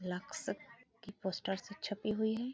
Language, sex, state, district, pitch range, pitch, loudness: Hindi, female, Chhattisgarh, Bilaspur, 190-225 Hz, 205 Hz, -40 LUFS